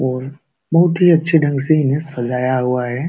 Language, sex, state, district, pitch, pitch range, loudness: Hindi, male, Uttar Pradesh, Jalaun, 140 Hz, 130-160 Hz, -16 LUFS